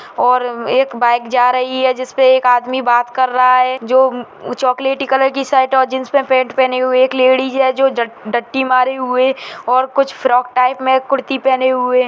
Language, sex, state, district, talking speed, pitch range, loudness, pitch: Hindi, female, Chhattisgarh, Raigarh, 205 wpm, 250-265 Hz, -14 LUFS, 255 Hz